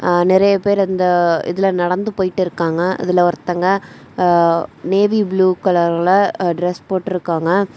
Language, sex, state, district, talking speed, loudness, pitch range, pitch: Tamil, female, Tamil Nadu, Kanyakumari, 110 wpm, -16 LUFS, 175-195 Hz, 185 Hz